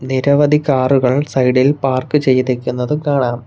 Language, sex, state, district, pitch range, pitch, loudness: Malayalam, male, Kerala, Kollam, 130-145 Hz, 130 Hz, -15 LUFS